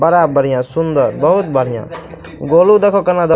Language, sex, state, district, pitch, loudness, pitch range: Maithili, male, Bihar, Madhepura, 165 Hz, -13 LUFS, 135-180 Hz